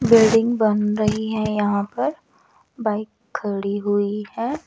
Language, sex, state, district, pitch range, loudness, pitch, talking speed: Hindi, male, Odisha, Nuapada, 210-235 Hz, -21 LUFS, 215 Hz, 130 wpm